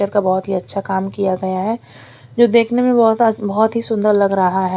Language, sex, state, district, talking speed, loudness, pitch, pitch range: Hindi, female, Punjab, Fazilka, 240 wpm, -16 LUFS, 200 Hz, 190-225 Hz